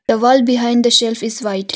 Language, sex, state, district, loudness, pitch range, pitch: English, female, Arunachal Pradesh, Longding, -14 LUFS, 215-245 Hz, 235 Hz